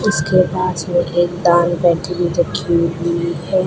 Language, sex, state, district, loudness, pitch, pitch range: Hindi, female, Rajasthan, Bikaner, -16 LUFS, 175 Hz, 170-180 Hz